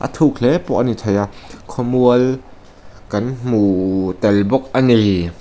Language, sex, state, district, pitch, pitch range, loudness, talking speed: Mizo, male, Mizoram, Aizawl, 110 Hz, 100-125 Hz, -16 LUFS, 145 wpm